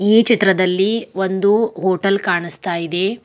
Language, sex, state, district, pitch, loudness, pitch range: Kannada, female, Karnataka, Bidar, 190 Hz, -17 LUFS, 180-210 Hz